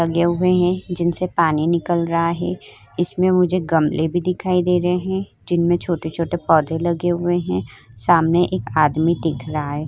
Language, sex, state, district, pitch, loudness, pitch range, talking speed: Hindi, female, Uttar Pradesh, Hamirpur, 170 Hz, -19 LUFS, 160-180 Hz, 170 wpm